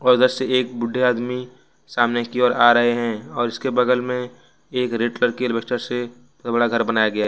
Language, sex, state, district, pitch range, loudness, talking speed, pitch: Hindi, male, Jharkhand, Ranchi, 120-125 Hz, -20 LUFS, 205 wpm, 125 Hz